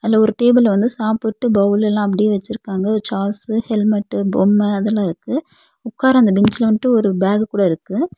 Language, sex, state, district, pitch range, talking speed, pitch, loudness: Tamil, female, Tamil Nadu, Nilgiris, 205-230 Hz, 170 wpm, 215 Hz, -16 LUFS